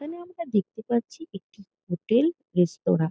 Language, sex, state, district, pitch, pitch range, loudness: Bengali, female, West Bengal, Jalpaiguri, 215 Hz, 180-275 Hz, -26 LUFS